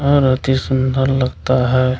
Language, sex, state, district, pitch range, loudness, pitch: Hindi, male, Bihar, Kishanganj, 130-135 Hz, -16 LUFS, 130 Hz